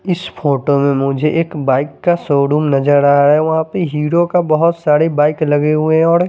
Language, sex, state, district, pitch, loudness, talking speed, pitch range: Hindi, male, Chandigarh, Chandigarh, 150 Hz, -14 LUFS, 230 wpm, 145-165 Hz